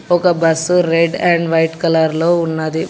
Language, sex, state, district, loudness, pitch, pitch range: Telugu, male, Telangana, Hyderabad, -14 LUFS, 165 Hz, 160-175 Hz